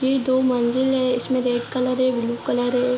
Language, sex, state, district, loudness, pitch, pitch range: Hindi, female, Jharkhand, Jamtara, -21 LUFS, 255 Hz, 245-260 Hz